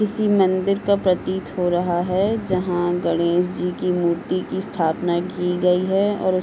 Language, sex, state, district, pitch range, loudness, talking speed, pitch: Hindi, female, Uttar Pradesh, Hamirpur, 175-190 Hz, -21 LUFS, 175 wpm, 180 Hz